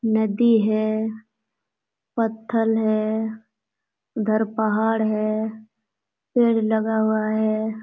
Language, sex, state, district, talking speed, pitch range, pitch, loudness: Hindi, female, Bihar, Jamui, 85 wpm, 215-225 Hz, 220 Hz, -22 LUFS